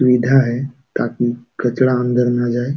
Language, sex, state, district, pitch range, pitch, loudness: Hindi, male, Uttar Pradesh, Jalaun, 120-130 Hz, 125 Hz, -17 LUFS